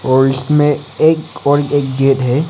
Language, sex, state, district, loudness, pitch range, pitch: Hindi, male, Arunachal Pradesh, Lower Dibang Valley, -14 LUFS, 135-150 Hz, 145 Hz